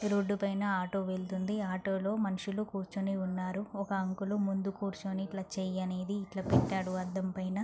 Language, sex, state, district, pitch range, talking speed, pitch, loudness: Telugu, female, Andhra Pradesh, Anantapur, 190-200 Hz, 175 wpm, 195 Hz, -35 LUFS